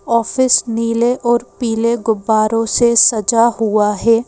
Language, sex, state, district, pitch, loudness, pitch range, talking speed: Hindi, female, Madhya Pradesh, Bhopal, 230 Hz, -14 LUFS, 225-235 Hz, 125 wpm